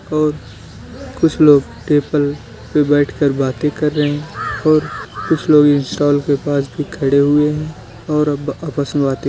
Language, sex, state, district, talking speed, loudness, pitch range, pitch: Hindi, male, Uttar Pradesh, Deoria, 170 wpm, -16 LUFS, 140-150 Hz, 145 Hz